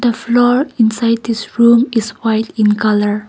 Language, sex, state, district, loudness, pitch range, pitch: English, female, Nagaland, Kohima, -14 LUFS, 220-235 Hz, 225 Hz